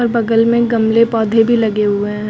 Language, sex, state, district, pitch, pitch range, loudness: Hindi, female, Uttar Pradesh, Lucknow, 225 Hz, 215-230 Hz, -14 LUFS